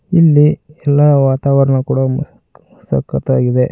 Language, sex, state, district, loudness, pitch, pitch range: Kannada, male, Karnataka, Koppal, -13 LUFS, 140 Hz, 135-150 Hz